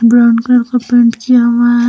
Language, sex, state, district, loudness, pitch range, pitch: Hindi, female, Jharkhand, Deoghar, -10 LUFS, 235-245 Hz, 240 Hz